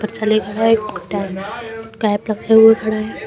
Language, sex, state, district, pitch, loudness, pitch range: Hindi, female, Uttar Pradesh, Lucknow, 215 Hz, -16 LUFS, 210-225 Hz